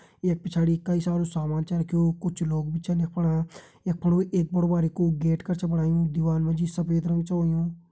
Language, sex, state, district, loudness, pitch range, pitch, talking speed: Hindi, male, Uttarakhand, Tehri Garhwal, -26 LUFS, 165-175 Hz, 170 Hz, 220 wpm